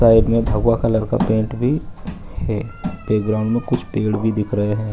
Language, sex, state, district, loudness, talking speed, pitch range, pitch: Hindi, male, Bihar, Gaya, -19 LUFS, 205 wpm, 105-115 Hz, 110 Hz